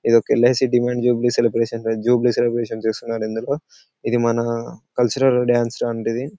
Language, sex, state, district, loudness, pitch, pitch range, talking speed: Telugu, male, Telangana, Karimnagar, -20 LUFS, 120 Hz, 115-125 Hz, 130 wpm